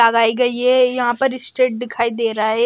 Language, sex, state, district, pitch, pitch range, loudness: Hindi, male, Maharashtra, Washim, 240 Hz, 230-250 Hz, -17 LUFS